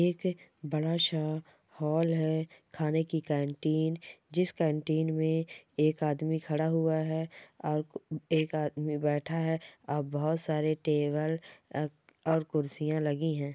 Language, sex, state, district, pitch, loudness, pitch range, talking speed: Hindi, female, Bihar, Jamui, 155 Hz, -32 LUFS, 150-160 Hz, 130 wpm